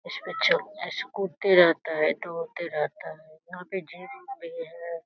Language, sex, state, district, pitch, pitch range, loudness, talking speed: Hindi, female, Bihar, Lakhisarai, 175 Hz, 165-195 Hz, -26 LUFS, 155 wpm